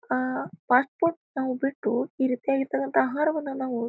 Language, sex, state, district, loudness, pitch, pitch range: Kannada, female, Karnataka, Bijapur, -26 LUFS, 265 Hz, 250-280 Hz